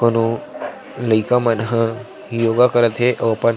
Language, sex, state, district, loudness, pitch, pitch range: Chhattisgarhi, male, Chhattisgarh, Sarguja, -18 LUFS, 115 Hz, 115-120 Hz